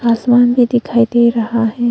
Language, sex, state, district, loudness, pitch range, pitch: Hindi, female, Arunachal Pradesh, Longding, -13 LUFS, 230-240 Hz, 235 Hz